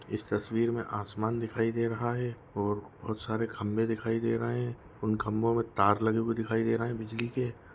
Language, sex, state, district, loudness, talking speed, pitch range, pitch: Hindi, male, Goa, North and South Goa, -31 LUFS, 215 wpm, 110-115 Hz, 115 Hz